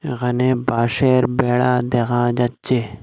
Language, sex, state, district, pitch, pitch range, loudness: Bengali, male, Assam, Hailakandi, 125 Hz, 120-125 Hz, -18 LUFS